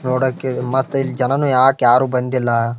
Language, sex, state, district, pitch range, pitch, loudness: Kannada, male, Karnataka, Bijapur, 125-135 Hz, 130 Hz, -17 LUFS